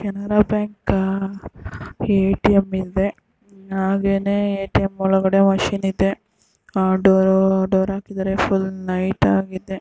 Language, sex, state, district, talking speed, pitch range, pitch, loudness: Kannada, female, Karnataka, Bijapur, 90 wpm, 190-195 Hz, 195 Hz, -19 LUFS